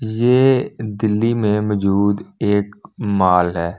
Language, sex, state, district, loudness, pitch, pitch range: Hindi, male, Delhi, New Delhi, -17 LUFS, 105 Hz, 100-110 Hz